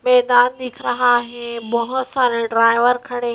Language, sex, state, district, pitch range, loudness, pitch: Hindi, female, Madhya Pradesh, Bhopal, 235-250 Hz, -17 LUFS, 245 Hz